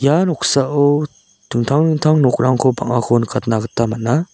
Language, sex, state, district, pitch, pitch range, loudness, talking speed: Garo, male, Meghalaya, South Garo Hills, 130 Hz, 120-150 Hz, -16 LUFS, 125 wpm